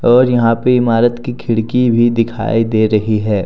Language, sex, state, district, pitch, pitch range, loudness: Hindi, male, Jharkhand, Deoghar, 115 Hz, 110-120 Hz, -14 LUFS